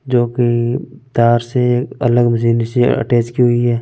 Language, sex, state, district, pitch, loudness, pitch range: Hindi, male, Punjab, Fazilka, 120 Hz, -15 LUFS, 120-125 Hz